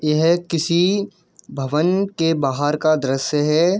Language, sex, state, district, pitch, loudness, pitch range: Hindi, male, Jharkhand, Jamtara, 165 Hz, -19 LUFS, 150-175 Hz